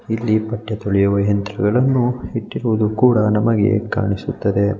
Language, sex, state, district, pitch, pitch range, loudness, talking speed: Kannada, male, Karnataka, Mysore, 110 Hz, 100-115 Hz, -18 LUFS, 100 wpm